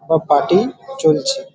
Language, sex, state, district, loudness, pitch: Bengali, male, West Bengal, Paschim Medinipur, -16 LUFS, 185 Hz